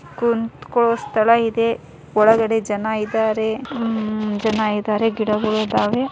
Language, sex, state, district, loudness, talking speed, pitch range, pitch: Kannada, male, Karnataka, Dharwad, -19 LUFS, 110 wpm, 215-230 Hz, 220 Hz